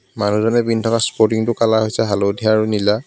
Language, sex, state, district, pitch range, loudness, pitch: Assamese, male, Assam, Kamrup Metropolitan, 105-115 Hz, -17 LUFS, 110 Hz